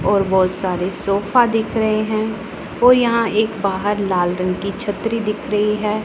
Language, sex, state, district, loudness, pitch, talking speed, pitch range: Hindi, female, Punjab, Pathankot, -18 LUFS, 210 Hz, 180 wpm, 195-220 Hz